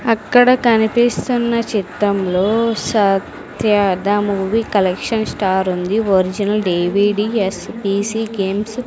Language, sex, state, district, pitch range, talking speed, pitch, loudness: Telugu, female, Andhra Pradesh, Sri Satya Sai, 195-225 Hz, 90 wpm, 205 Hz, -16 LUFS